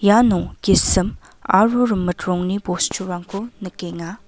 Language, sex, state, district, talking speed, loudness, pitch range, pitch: Garo, female, Meghalaya, West Garo Hills, 100 wpm, -19 LUFS, 180-210 Hz, 190 Hz